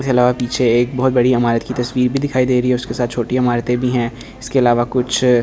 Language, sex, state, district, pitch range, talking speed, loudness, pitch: Hindi, male, Delhi, New Delhi, 120-125 Hz, 255 wpm, -16 LUFS, 125 Hz